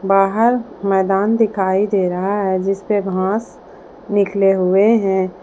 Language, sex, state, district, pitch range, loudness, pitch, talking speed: Hindi, female, Jharkhand, Palamu, 190-210 Hz, -17 LUFS, 195 Hz, 120 wpm